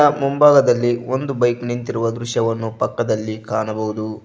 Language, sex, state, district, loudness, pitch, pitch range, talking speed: Kannada, male, Karnataka, Koppal, -19 LUFS, 120 Hz, 110-125 Hz, 100 wpm